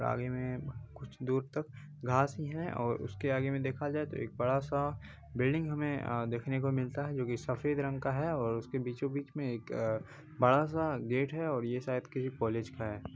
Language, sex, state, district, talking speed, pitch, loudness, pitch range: Hindi, male, Bihar, Bhagalpur, 220 wpm, 130 Hz, -35 LUFS, 125-145 Hz